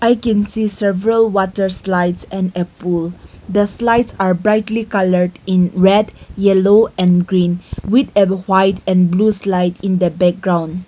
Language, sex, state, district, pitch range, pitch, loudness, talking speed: English, female, Nagaland, Kohima, 180-210 Hz, 190 Hz, -15 LUFS, 155 wpm